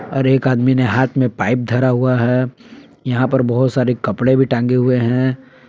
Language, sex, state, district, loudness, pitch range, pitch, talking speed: Hindi, male, Jharkhand, Palamu, -16 LUFS, 125-130 Hz, 125 Hz, 200 wpm